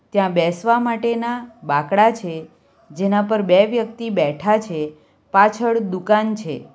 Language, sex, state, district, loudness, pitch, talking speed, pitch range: Gujarati, female, Gujarat, Valsad, -19 LUFS, 205 Hz, 125 wpm, 170-230 Hz